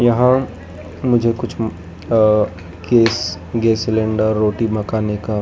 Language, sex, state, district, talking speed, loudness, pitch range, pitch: Hindi, male, Madhya Pradesh, Dhar, 110 wpm, -17 LUFS, 90-115 Hz, 110 Hz